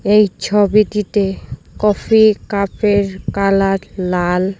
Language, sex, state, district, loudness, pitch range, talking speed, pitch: Bengali, female, Assam, Hailakandi, -15 LUFS, 195-210 Hz, 90 wpm, 200 Hz